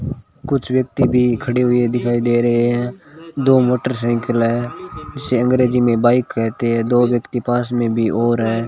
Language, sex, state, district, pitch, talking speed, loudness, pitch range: Hindi, male, Rajasthan, Bikaner, 120 Hz, 175 wpm, -17 LUFS, 120-125 Hz